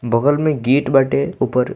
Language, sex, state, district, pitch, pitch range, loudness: Bhojpuri, male, Bihar, Muzaffarpur, 135 Hz, 125-145 Hz, -16 LUFS